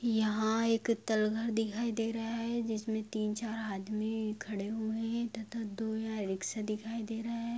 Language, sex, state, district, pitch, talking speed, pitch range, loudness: Hindi, female, Jharkhand, Sahebganj, 220 Hz, 180 wpm, 215-230 Hz, -35 LUFS